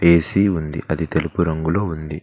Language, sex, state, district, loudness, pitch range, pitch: Telugu, male, Telangana, Mahabubabad, -20 LUFS, 80-85 Hz, 80 Hz